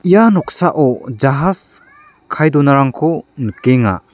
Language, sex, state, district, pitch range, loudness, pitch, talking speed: Garo, male, Meghalaya, South Garo Hills, 125-175 Hz, -14 LUFS, 140 Hz, 85 wpm